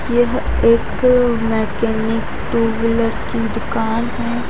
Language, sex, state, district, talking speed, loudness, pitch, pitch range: Hindi, female, Haryana, Charkhi Dadri, 105 wpm, -18 LUFS, 230 Hz, 225-235 Hz